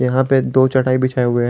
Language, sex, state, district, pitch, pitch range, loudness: Hindi, male, Jharkhand, Garhwa, 130 Hz, 125-130 Hz, -16 LUFS